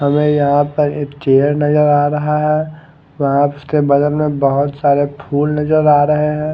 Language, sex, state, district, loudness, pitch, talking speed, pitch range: Hindi, male, Odisha, Khordha, -14 LUFS, 145 Hz, 185 wpm, 145-150 Hz